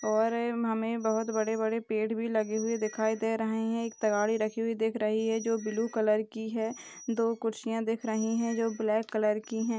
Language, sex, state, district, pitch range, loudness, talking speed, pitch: Hindi, female, Rajasthan, Churu, 220-230 Hz, -30 LUFS, 215 wpm, 225 Hz